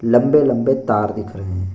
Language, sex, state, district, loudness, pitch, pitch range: Hindi, male, Bihar, Bhagalpur, -17 LUFS, 115 Hz, 105-130 Hz